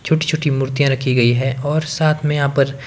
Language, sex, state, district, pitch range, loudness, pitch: Hindi, male, Himachal Pradesh, Shimla, 135-155 Hz, -17 LUFS, 140 Hz